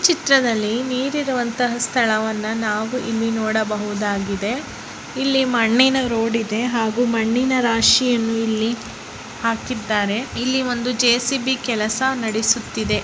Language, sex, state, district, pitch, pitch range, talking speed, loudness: Kannada, male, Karnataka, Bellary, 235 Hz, 220-255 Hz, 95 wpm, -19 LUFS